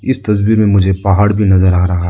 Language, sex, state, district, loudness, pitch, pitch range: Hindi, male, Arunachal Pradesh, Lower Dibang Valley, -11 LUFS, 100 Hz, 95-105 Hz